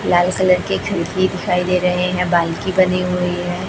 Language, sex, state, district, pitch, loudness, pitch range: Hindi, female, Chhattisgarh, Raipur, 180 Hz, -17 LUFS, 180-185 Hz